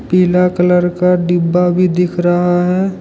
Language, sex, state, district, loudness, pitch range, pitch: Hindi, male, Jharkhand, Deoghar, -13 LUFS, 175-180 Hz, 180 Hz